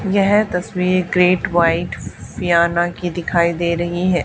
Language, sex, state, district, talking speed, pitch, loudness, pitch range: Hindi, female, Haryana, Charkhi Dadri, 140 wpm, 175 Hz, -17 LUFS, 170-185 Hz